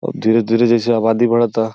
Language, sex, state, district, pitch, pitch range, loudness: Bhojpuri, male, Uttar Pradesh, Gorakhpur, 115 Hz, 115-120 Hz, -15 LUFS